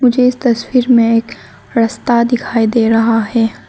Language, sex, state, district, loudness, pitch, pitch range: Hindi, female, Arunachal Pradesh, Lower Dibang Valley, -13 LUFS, 235 Hz, 230-245 Hz